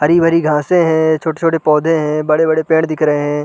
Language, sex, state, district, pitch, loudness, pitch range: Hindi, male, Chhattisgarh, Sarguja, 160 Hz, -14 LUFS, 155-165 Hz